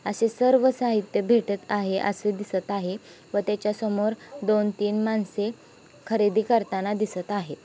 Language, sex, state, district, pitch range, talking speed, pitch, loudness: Hindi, female, Maharashtra, Sindhudurg, 200-220 Hz, 135 wpm, 210 Hz, -25 LUFS